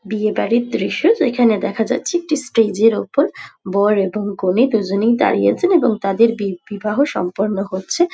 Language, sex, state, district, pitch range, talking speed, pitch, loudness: Bengali, female, West Bengal, Dakshin Dinajpur, 200-245 Hz, 160 wpm, 220 Hz, -17 LUFS